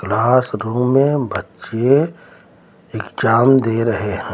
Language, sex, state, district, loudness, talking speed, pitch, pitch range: Hindi, male, Uttar Pradesh, Lucknow, -16 LUFS, 95 wpm, 115 Hz, 110-135 Hz